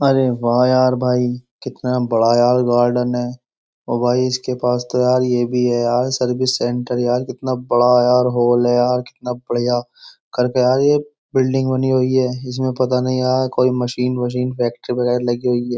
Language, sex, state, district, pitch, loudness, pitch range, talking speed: Hindi, male, Uttar Pradesh, Jyotiba Phule Nagar, 125 Hz, -17 LUFS, 120-130 Hz, 185 wpm